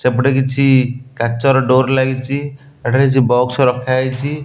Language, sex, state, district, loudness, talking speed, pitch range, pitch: Odia, male, Odisha, Nuapada, -15 LUFS, 120 wpm, 125-135 Hz, 130 Hz